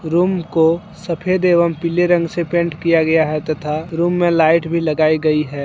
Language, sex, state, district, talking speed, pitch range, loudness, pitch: Hindi, male, Jharkhand, Deoghar, 200 wpm, 155-175 Hz, -16 LUFS, 170 Hz